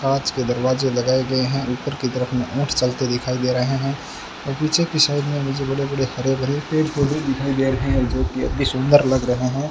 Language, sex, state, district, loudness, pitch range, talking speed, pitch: Hindi, male, Rajasthan, Bikaner, -20 LUFS, 130-140 Hz, 215 wpm, 135 Hz